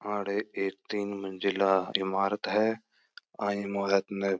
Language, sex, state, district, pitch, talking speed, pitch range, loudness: Marwari, male, Rajasthan, Churu, 100 Hz, 125 wpm, 95-105 Hz, -30 LUFS